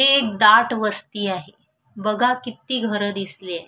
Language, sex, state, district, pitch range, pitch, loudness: Marathi, female, Maharashtra, Solapur, 195-240 Hz, 215 Hz, -20 LUFS